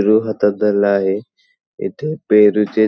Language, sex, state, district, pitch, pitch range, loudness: Marathi, male, Maharashtra, Pune, 105 Hz, 105-110 Hz, -16 LUFS